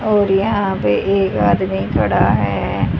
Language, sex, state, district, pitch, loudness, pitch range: Hindi, female, Haryana, Charkhi Dadri, 195 Hz, -16 LUFS, 190-200 Hz